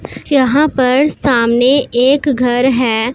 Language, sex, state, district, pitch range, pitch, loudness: Hindi, female, Punjab, Pathankot, 245-280 Hz, 255 Hz, -12 LUFS